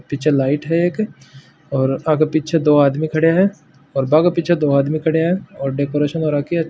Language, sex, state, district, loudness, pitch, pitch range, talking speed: Marwari, male, Rajasthan, Nagaur, -17 LUFS, 155 Hz, 140-165 Hz, 215 wpm